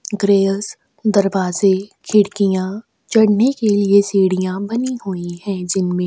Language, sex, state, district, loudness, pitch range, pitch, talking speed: Hindi, female, Chhattisgarh, Sukma, -17 LUFS, 190-210 Hz, 200 Hz, 110 wpm